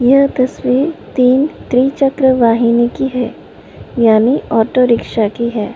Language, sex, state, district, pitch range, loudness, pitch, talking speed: Hindi, female, Uttar Pradesh, Budaun, 235-265 Hz, -13 LUFS, 250 Hz, 95 wpm